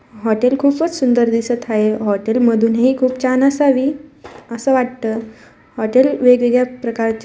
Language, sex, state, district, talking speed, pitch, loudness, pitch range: Marathi, female, Maharashtra, Dhule, 130 wpm, 245 Hz, -16 LUFS, 225-260 Hz